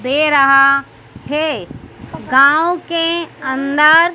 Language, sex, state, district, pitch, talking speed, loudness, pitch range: Hindi, female, Madhya Pradesh, Dhar, 300 Hz, 85 wpm, -13 LUFS, 275-330 Hz